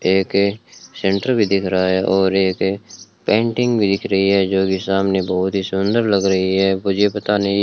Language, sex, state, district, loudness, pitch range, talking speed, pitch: Hindi, male, Rajasthan, Bikaner, -17 LUFS, 95-100 Hz, 195 wpm, 95 Hz